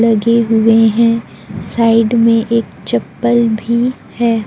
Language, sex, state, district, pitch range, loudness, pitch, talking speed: Hindi, female, Chhattisgarh, Raipur, 225-235 Hz, -13 LUFS, 230 Hz, 120 wpm